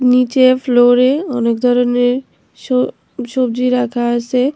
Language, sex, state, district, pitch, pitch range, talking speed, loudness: Bengali, female, Tripura, West Tripura, 250 Hz, 245-255 Hz, 105 wpm, -14 LUFS